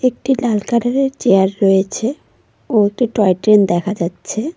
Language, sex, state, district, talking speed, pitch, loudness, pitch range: Bengali, female, West Bengal, Cooch Behar, 155 wpm, 215 Hz, -16 LUFS, 195-245 Hz